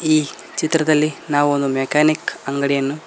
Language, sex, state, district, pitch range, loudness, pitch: Kannada, male, Karnataka, Koppal, 140-155 Hz, -18 LUFS, 150 Hz